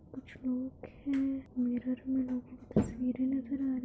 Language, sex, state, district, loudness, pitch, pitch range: Hindi, female, Bihar, Muzaffarpur, -35 LUFS, 260 Hz, 255-265 Hz